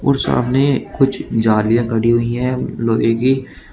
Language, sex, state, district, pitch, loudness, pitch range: Hindi, male, Uttar Pradesh, Shamli, 120 Hz, -16 LUFS, 115-130 Hz